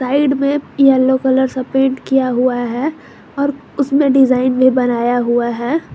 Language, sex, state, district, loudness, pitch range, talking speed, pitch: Hindi, female, Jharkhand, Garhwa, -15 LUFS, 250-280 Hz, 160 wpm, 265 Hz